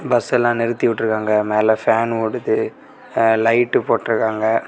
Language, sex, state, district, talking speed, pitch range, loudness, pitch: Tamil, male, Tamil Nadu, Kanyakumari, 115 wpm, 110-115 Hz, -18 LUFS, 115 Hz